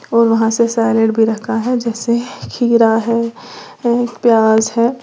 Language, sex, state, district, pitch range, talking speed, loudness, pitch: Hindi, female, Uttar Pradesh, Lalitpur, 225-240 Hz, 145 wpm, -14 LUFS, 230 Hz